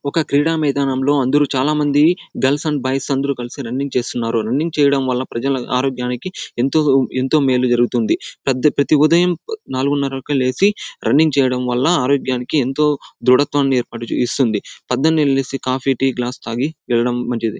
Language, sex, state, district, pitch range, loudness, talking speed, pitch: Telugu, male, Andhra Pradesh, Anantapur, 125-145 Hz, -17 LUFS, 155 wpm, 135 Hz